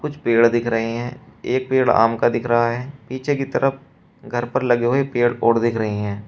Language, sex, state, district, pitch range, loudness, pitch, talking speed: Hindi, male, Uttar Pradesh, Shamli, 115-130 Hz, -19 LUFS, 120 Hz, 230 wpm